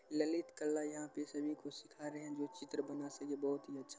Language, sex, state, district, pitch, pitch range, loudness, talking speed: Maithili, male, Bihar, Supaul, 145 Hz, 140-150 Hz, -43 LUFS, 270 wpm